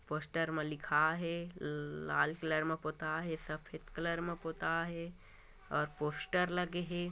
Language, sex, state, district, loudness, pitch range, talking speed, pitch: Hindi, male, Chhattisgarh, Korba, -37 LUFS, 155-170 Hz, 160 wpm, 160 Hz